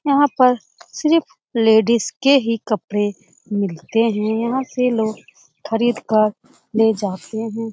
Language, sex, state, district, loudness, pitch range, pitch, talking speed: Hindi, female, Bihar, Jamui, -19 LUFS, 210-250 Hz, 225 Hz, 130 wpm